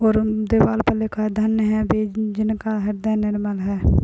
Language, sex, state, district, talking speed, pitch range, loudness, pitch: Hindi, female, Uttar Pradesh, Ghazipur, 195 wpm, 210-220 Hz, -21 LUFS, 215 Hz